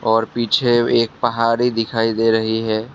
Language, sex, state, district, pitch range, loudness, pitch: Hindi, male, Assam, Kamrup Metropolitan, 110-120 Hz, -17 LUFS, 115 Hz